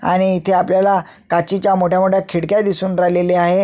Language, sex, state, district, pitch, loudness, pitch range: Marathi, male, Maharashtra, Sindhudurg, 185 Hz, -15 LUFS, 180-195 Hz